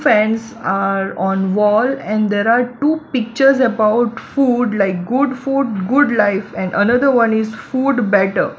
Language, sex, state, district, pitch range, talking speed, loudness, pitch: English, female, Gujarat, Valsad, 205-260 Hz, 155 wpm, -16 LUFS, 225 Hz